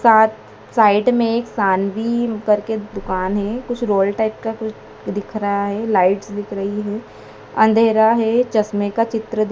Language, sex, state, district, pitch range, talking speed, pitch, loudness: Hindi, male, Madhya Pradesh, Dhar, 205-225 Hz, 160 wpm, 215 Hz, -18 LUFS